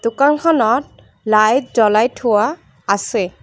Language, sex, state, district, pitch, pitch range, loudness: Assamese, female, Assam, Kamrup Metropolitan, 220 Hz, 210-260 Hz, -15 LUFS